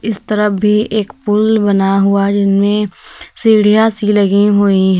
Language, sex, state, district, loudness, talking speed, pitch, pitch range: Hindi, female, Uttar Pradesh, Lalitpur, -12 LUFS, 145 wpm, 205 Hz, 200-215 Hz